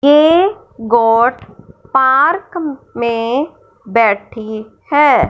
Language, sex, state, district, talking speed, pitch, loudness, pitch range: Hindi, male, Punjab, Fazilka, 70 wpm, 265 Hz, -13 LUFS, 230-315 Hz